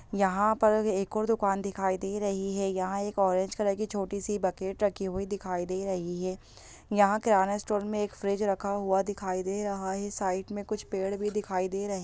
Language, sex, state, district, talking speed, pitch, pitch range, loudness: Hindi, female, Chhattisgarh, Bastar, 220 wpm, 200 Hz, 190-205 Hz, -30 LUFS